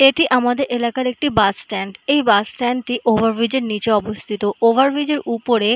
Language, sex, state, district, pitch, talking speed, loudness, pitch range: Bengali, female, West Bengal, Purulia, 235 Hz, 175 wpm, -18 LUFS, 215-260 Hz